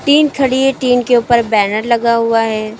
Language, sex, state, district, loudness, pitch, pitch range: Hindi, female, Uttar Pradesh, Lucknow, -13 LUFS, 235 Hz, 225-260 Hz